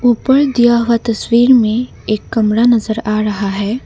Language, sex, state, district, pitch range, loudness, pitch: Hindi, female, Assam, Kamrup Metropolitan, 215-240 Hz, -13 LUFS, 230 Hz